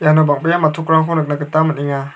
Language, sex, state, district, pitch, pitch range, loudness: Garo, male, Meghalaya, South Garo Hills, 155 Hz, 145-160 Hz, -15 LUFS